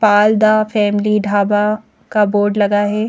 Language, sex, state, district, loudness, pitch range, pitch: Hindi, female, Madhya Pradesh, Bhopal, -14 LUFS, 205-215 Hz, 210 Hz